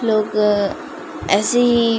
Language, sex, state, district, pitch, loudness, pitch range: Maithili, female, Bihar, Samastipur, 230 Hz, -17 LUFS, 210-265 Hz